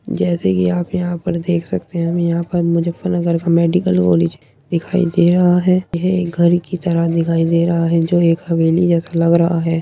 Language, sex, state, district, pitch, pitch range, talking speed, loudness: Hindi, female, Uttar Pradesh, Muzaffarnagar, 170 Hz, 165-175 Hz, 220 wpm, -16 LUFS